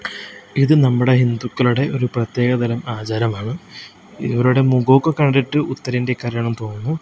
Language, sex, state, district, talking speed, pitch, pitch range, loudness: Malayalam, male, Kerala, Kozhikode, 105 wpm, 125 Hz, 120-135 Hz, -18 LUFS